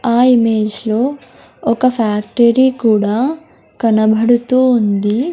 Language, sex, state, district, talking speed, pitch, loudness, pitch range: Telugu, male, Andhra Pradesh, Sri Satya Sai, 80 wpm, 235 Hz, -14 LUFS, 215-255 Hz